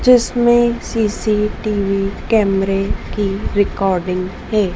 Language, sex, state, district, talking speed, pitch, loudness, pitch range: Hindi, female, Madhya Pradesh, Dhar, 75 wpm, 205 Hz, -17 LUFS, 195-225 Hz